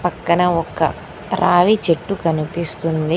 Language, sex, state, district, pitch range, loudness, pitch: Telugu, female, Telangana, Mahabubabad, 165-180 Hz, -18 LUFS, 170 Hz